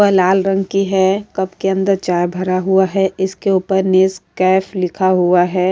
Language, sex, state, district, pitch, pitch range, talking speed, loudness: Hindi, female, Maharashtra, Aurangabad, 190 Hz, 185-195 Hz, 190 wpm, -15 LUFS